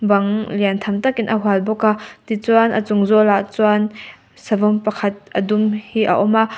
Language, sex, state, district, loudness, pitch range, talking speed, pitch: Mizo, female, Mizoram, Aizawl, -17 LUFS, 205-220 Hz, 200 wpm, 210 Hz